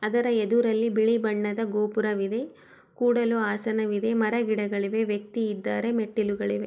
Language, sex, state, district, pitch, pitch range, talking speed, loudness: Kannada, female, Karnataka, Chamarajanagar, 220 Hz, 210-230 Hz, 110 wpm, -26 LUFS